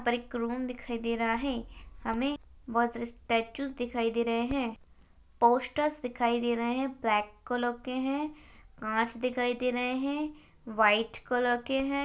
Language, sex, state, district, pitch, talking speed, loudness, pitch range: Hindi, female, Maharashtra, Chandrapur, 245 Hz, 160 wpm, -31 LUFS, 235-260 Hz